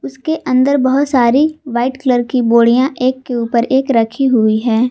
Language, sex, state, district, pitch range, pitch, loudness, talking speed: Hindi, female, Jharkhand, Garhwa, 235-265 Hz, 255 Hz, -14 LUFS, 185 wpm